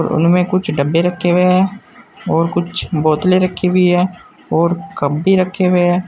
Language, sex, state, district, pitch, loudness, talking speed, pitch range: Hindi, male, Uttar Pradesh, Saharanpur, 180 Hz, -15 LUFS, 195 wpm, 170-185 Hz